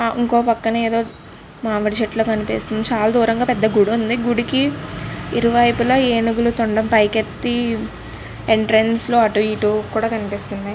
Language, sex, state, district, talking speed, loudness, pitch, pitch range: Telugu, female, Andhra Pradesh, Krishna, 130 wpm, -18 LUFS, 225 Hz, 220-235 Hz